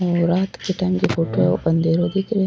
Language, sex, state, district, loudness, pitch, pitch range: Rajasthani, female, Rajasthan, Churu, -20 LUFS, 175 Hz, 165-190 Hz